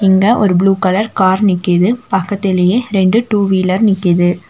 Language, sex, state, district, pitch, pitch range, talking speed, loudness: Tamil, female, Tamil Nadu, Nilgiris, 195 Hz, 185-205 Hz, 145 wpm, -13 LUFS